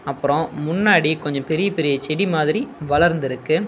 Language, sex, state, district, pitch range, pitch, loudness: Tamil, male, Tamil Nadu, Nilgiris, 145-170 Hz, 155 Hz, -19 LUFS